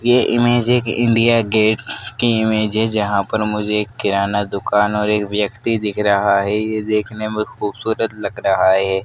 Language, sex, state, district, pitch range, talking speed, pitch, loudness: Hindi, male, Madhya Pradesh, Dhar, 105-115 Hz, 180 wpm, 105 Hz, -17 LUFS